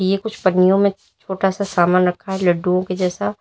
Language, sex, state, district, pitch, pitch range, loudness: Hindi, female, Uttar Pradesh, Lalitpur, 185 Hz, 180-195 Hz, -18 LUFS